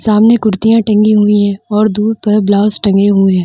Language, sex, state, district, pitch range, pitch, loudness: Hindi, female, Bihar, Vaishali, 200-215 Hz, 210 Hz, -10 LUFS